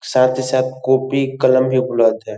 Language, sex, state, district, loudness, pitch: Hindi, male, Bihar, Lakhisarai, -16 LUFS, 130 Hz